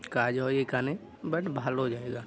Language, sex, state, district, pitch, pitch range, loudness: Bengali, male, West Bengal, Purulia, 130 Hz, 125-140 Hz, -31 LUFS